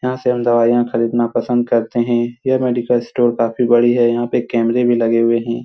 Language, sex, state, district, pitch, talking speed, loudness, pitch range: Hindi, male, Bihar, Supaul, 120 Hz, 225 wpm, -16 LUFS, 115-120 Hz